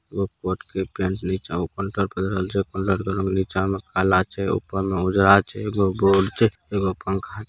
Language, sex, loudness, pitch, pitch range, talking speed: Angika, male, -23 LUFS, 95 Hz, 95-100 Hz, 145 wpm